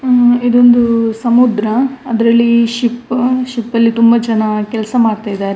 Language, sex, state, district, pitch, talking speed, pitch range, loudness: Kannada, female, Karnataka, Dakshina Kannada, 235 Hz, 140 wpm, 225-245 Hz, -12 LUFS